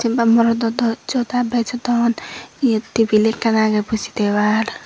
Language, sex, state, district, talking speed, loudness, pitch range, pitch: Chakma, female, Tripura, Dhalai, 150 wpm, -18 LUFS, 220-240 Hz, 230 Hz